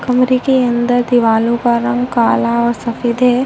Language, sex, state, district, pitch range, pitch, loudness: Hindi, female, Uttar Pradesh, Hamirpur, 235-250 Hz, 240 Hz, -14 LUFS